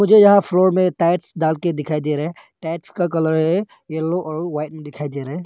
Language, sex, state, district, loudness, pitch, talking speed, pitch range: Hindi, male, Arunachal Pradesh, Longding, -19 LUFS, 165 Hz, 240 wpm, 155-180 Hz